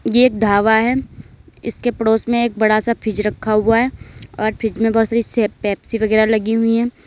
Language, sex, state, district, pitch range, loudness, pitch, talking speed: Hindi, female, Uttar Pradesh, Lalitpur, 215-235 Hz, -17 LUFS, 225 Hz, 195 wpm